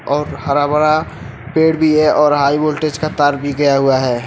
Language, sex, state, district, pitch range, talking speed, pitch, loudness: Hindi, male, Uttar Pradesh, Lucknow, 140-155 Hz, 210 wpm, 145 Hz, -14 LUFS